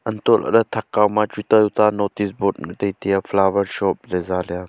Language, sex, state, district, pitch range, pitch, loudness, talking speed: Wancho, male, Arunachal Pradesh, Longding, 95-105 Hz, 100 Hz, -19 LUFS, 205 wpm